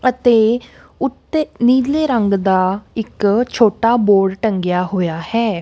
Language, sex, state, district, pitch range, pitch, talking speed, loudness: Punjabi, female, Punjab, Kapurthala, 195-240 Hz, 220 Hz, 130 wpm, -16 LUFS